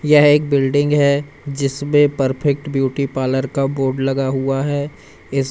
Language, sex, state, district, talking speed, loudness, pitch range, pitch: Hindi, male, Madhya Pradesh, Umaria, 150 wpm, -17 LUFS, 135-145 Hz, 140 Hz